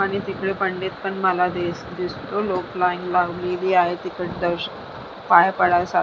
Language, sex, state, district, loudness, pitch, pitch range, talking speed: Marathi, female, Maharashtra, Sindhudurg, -22 LUFS, 180 Hz, 180-190 Hz, 160 wpm